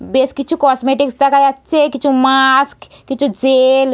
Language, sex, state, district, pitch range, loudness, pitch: Bengali, female, West Bengal, Purulia, 265-280 Hz, -13 LUFS, 270 Hz